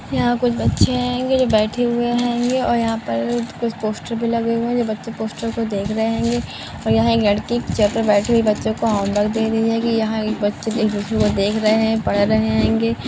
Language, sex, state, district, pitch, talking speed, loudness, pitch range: Hindi, female, Bihar, Gopalganj, 225 Hz, 235 wpm, -19 LUFS, 210-235 Hz